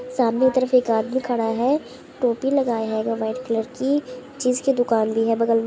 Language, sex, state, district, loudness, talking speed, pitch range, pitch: Hindi, female, Uttar Pradesh, Gorakhpur, -22 LUFS, 210 wpm, 225-260 Hz, 245 Hz